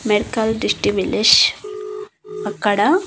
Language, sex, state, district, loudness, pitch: Telugu, female, Andhra Pradesh, Annamaya, -16 LUFS, 280 Hz